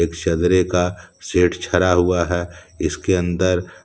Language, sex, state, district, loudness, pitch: Hindi, male, Jharkhand, Deoghar, -19 LUFS, 90 Hz